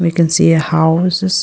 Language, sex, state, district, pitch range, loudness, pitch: English, female, Arunachal Pradesh, Lower Dibang Valley, 165-180 Hz, -13 LUFS, 170 Hz